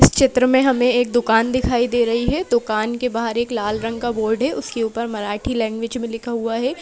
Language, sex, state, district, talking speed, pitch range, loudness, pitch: Hindi, female, Madhya Pradesh, Bhopal, 230 wpm, 225-250 Hz, -19 LUFS, 235 Hz